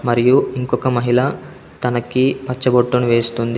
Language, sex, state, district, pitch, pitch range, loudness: Telugu, male, Telangana, Komaram Bheem, 125 Hz, 120-130 Hz, -17 LUFS